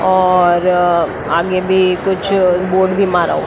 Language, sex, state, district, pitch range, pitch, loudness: Hindi, female, Maharashtra, Mumbai Suburban, 175-190 Hz, 185 Hz, -13 LUFS